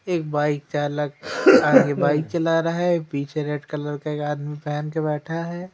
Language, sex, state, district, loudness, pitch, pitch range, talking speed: Hindi, female, Madhya Pradesh, Umaria, -22 LUFS, 150 Hz, 150-165 Hz, 200 wpm